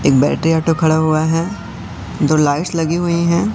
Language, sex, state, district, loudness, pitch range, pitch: Hindi, male, Madhya Pradesh, Katni, -16 LUFS, 155-170 Hz, 165 Hz